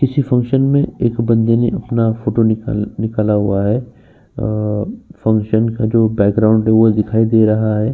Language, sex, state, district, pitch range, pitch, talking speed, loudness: Hindi, male, Uttar Pradesh, Jyotiba Phule Nagar, 110-120 Hz, 110 Hz, 175 wpm, -15 LUFS